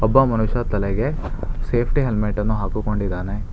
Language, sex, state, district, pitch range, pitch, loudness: Kannada, male, Karnataka, Bangalore, 105-120 Hz, 110 Hz, -22 LUFS